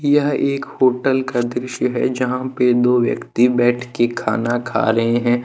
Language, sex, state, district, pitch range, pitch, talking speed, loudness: Hindi, male, Jharkhand, Deoghar, 120-130 Hz, 125 Hz, 175 wpm, -18 LUFS